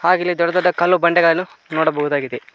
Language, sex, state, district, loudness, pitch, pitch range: Kannada, male, Karnataka, Koppal, -17 LUFS, 170 Hz, 155-180 Hz